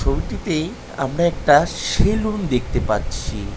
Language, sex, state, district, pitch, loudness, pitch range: Bengali, male, West Bengal, North 24 Parganas, 145 Hz, -20 LUFS, 105-170 Hz